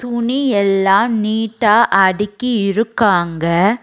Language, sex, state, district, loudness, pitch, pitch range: Tamil, female, Tamil Nadu, Nilgiris, -15 LUFS, 210 Hz, 195-235 Hz